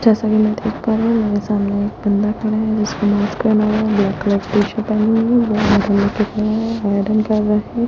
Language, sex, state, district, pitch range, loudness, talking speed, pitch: Hindi, female, Delhi, New Delhi, 205-220 Hz, -17 LUFS, 150 wpm, 215 Hz